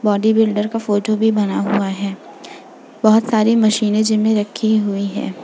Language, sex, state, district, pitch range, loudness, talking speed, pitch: Hindi, female, Uttar Pradesh, Jalaun, 205-220 Hz, -17 LUFS, 175 wpm, 215 Hz